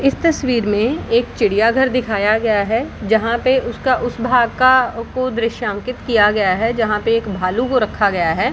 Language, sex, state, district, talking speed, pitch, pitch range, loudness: Hindi, female, Bihar, Darbhanga, 205 wpm, 230 Hz, 215-255 Hz, -17 LUFS